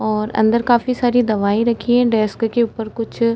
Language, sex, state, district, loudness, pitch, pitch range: Hindi, female, Uttar Pradesh, Etah, -17 LUFS, 230 Hz, 220-240 Hz